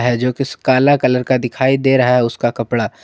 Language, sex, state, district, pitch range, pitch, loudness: Hindi, male, Jharkhand, Ranchi, 120-130 Hz, 125 Hz, -15 LUFS